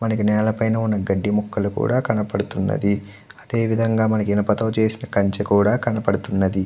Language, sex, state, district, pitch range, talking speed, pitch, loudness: Telugu, male, Andhra Pradesh, Guntur, 100-115 Hz, 145 wpm, 105 Hz, -21 LUFS